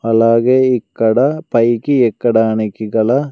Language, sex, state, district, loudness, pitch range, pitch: Telugu, male, Andhra Pradesh, Sri Satya Sai, -14 LUFS, 110-130 Hz, 115 Hz